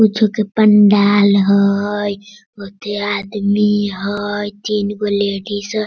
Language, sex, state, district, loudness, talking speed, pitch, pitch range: Hindi, female, Bihar, Sitamarhi, -15 LUFS, 110 wpm, 205 Hz, 200-210 Hz